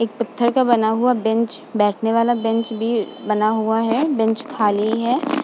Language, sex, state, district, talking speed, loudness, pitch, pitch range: Hindi, female, Uttar Pradesh, Budaun, 175 wpm, -19 LUFS, 230 Hz, 220-240 Hz